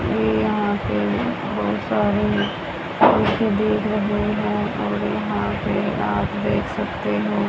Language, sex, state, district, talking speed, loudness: Hindi, male, Haryana, Rohtak, 120 wpm, -21 LUFS